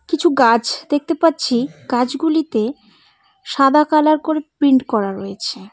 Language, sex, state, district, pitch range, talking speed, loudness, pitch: Bengali, female, West Bengal, Cooch Behar, 240-320 Hz, 115 wpm, -17 LUFS, 285 Hz